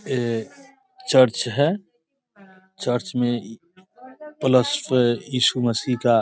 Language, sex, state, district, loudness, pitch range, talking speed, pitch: Hindi, male, Bihar, East Champaran, -21 LUFS, 125-200 Hz, 105 wpm, 140 Hz